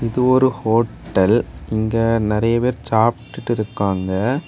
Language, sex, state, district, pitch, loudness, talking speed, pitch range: Tamil, male, Tamil Nadu, Kanyakumari, 115 Hz, -18 LUFS, 105 wpm, 110-125 Hz